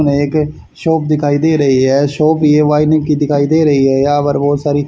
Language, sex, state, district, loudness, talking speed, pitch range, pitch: Hindi, male, Haryana, Charkhi Dadri, -12 LUFS, 210 wpm, 145-155 Hz, 145 Hz